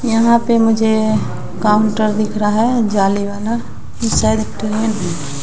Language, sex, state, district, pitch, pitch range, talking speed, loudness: Hindi, female, Bihar, West Champaran, 215 Hz, 200-225 Hz, 145 wpm, -16 LUFS